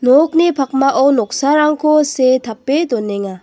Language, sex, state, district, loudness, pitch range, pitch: Garo, female, Meghalaya, West Garo Hills, -14 LUFS, 245-300 Hz, 275 Hz